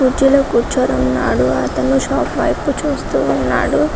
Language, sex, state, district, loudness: Telugu, female, Telangana, Karimnagar, -16 LUFS